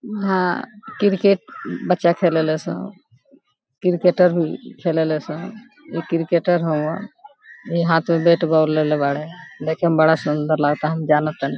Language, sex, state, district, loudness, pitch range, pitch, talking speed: Bhojpuri, female, Bihar, Gopalganj, -19 LUFS, 155-185 Hz, 170 Hz, 140 wpm